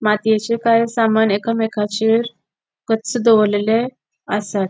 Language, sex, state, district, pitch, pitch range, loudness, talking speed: Konkani, female, Goa, North and South Goa, 220 Hz, 210-230 Hz, -17 LUFS, 90 wpm